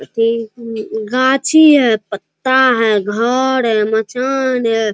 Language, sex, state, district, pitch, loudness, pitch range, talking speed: Hindi, male, Bihar, Araria, 230 Hz, -14 LUFS, 220-260 Hz, 95 wpm